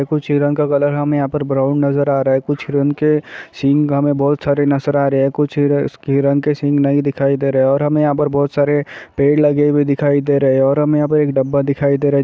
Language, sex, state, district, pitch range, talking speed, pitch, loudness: Hindi, male, Bihar, Vaishali, 140-145 Hz, 275 wpm, 145 Hz, -15 LUFS